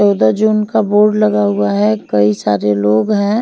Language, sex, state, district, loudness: Hindi, female, Himachal Pradesh, Shimla, -13 LUFS